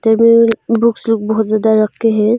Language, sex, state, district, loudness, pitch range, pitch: Hindi, female, Arunachal Pradesh, Longding, -13 LUFS, 220-230 Hz, 225 Hz